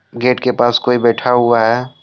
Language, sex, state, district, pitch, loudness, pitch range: Hindi, male, Jharkhand, Deoghar, 120 Hz, -13 LUFS, 120-125 Hz